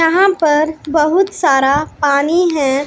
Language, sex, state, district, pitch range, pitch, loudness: Hindi, female, Punjab, Pathankot, 285-340 Hz, 310 Hz, -13 LUFS